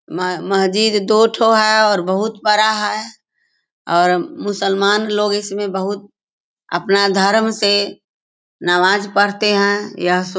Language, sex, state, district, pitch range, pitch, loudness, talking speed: Hindi, female, Bihar, Sitamarhi, 195-215 Hz, 205 Hz, -16 LUFS, 135 wpm